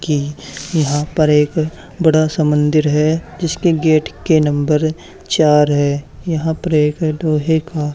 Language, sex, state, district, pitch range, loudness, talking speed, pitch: Hindi, male, Haryana, Charkhi Dadri, 150-160 Hz, -16 LUFS, 145 wpm, 155 Hz